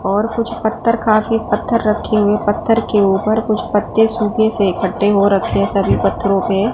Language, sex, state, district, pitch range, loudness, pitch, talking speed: Hindi, female, Punjab, Fazilka, 200-225 Hz, -15 LUFS, 215 Hz, 180 wpm